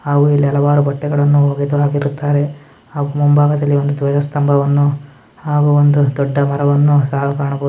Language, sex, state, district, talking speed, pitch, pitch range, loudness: Kannada, male, Karnataka, Mysore, 130 wpm, 145 Hz, 140-145 Hz, -14 LUFS